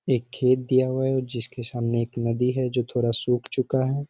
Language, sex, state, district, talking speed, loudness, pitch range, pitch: Hindi, male, Bihar, Sitamarhi, 220 wpm, -25 LUFS, 120-130 Hz, 125 Hz